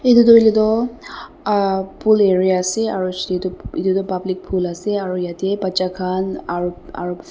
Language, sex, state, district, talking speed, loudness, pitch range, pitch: Nagamese, female, Nagaland, Dimapur, 155 wpm, -18 LUFS, 185-210 Hz, 190 Hz